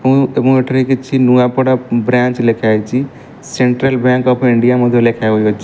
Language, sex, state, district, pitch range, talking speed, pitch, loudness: Odia, male, Odisha, Malkangiri, 120-130 Hz, 140 wpm, 125 Hz, -13 LUFS